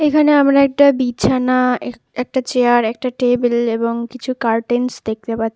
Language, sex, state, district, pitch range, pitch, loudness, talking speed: Bengali, female, West Bengal, Jalpaiguri, 235-260 Hz, 245 Hz, -16 LUFS, 160 wpm